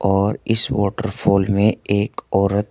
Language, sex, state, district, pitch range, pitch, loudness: Hindi, male, Uttar Pradesh, Saharanpur, 100-110 Hz, 100 Hz, -18 LUFS